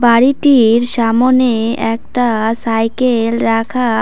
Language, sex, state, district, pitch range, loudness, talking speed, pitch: Bengali, female, West Bengal, Cooch Behar, 225-250 Hz, -13 LUFS, 75 wpm, 235 Hz